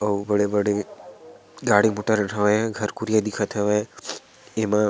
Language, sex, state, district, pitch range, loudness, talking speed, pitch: Chhattisgarhi, male, Chhattisgarh, Sarguja, 105-110 Hz, -23 LUFS, 120 wpm, 105 Hz